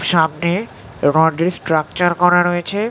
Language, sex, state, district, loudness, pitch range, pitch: Bengali, male, West Bengal, North 24 Parganas, -16 LUFS, 160-180 Hz, 175 Hz